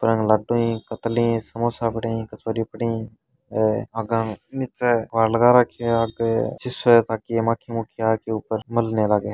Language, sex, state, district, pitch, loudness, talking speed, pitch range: Hindi, male, Rajasthan, Churu, 115 Hz, -22 LUFS, 140 wpm, 110-120 Hz